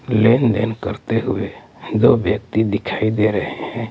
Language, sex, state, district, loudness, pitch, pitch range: Hindi, male, Delhi, New Delhi, -18 LUFS, 110 Hz, 105-115 Hz